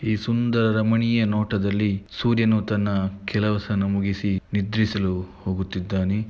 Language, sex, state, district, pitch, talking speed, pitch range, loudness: Kannada, male, Karnataka, Mysore, 105 Hz, 95 wpm, 100-110 Hz, -23 LUFS